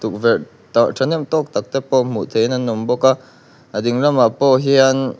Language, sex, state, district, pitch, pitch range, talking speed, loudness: Mizo, male, Mizoram, Aizawl, 130 Hz, 115-135 Hz, 185 wpm, -17 LUFS